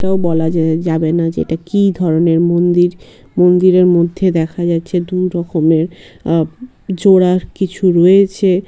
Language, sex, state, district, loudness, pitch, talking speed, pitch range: Bengali, female, West Bengal, North 24 Parganas, -13 LUFS, 175 Hz, 125 wpm, 165-185 Hz